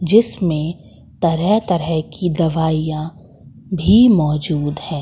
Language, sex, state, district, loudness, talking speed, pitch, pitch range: Hindi, female, Madhya Pradesh, Katni, -17 LUFS, 95 wpm, 165 Hz, 155-180 Hz